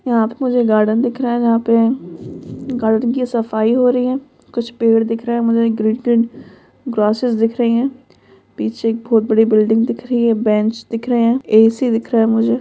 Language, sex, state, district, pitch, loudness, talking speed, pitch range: Hindi, female, Bihar, Sitamarhi, 230 Hz, -16 LUFS, 210 wpm, 225-245 Hz